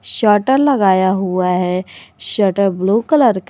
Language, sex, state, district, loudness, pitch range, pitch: Hindi, female, Jharkhand, Garhwa, -15 LUFS, 185-230 Hz, 195 Hz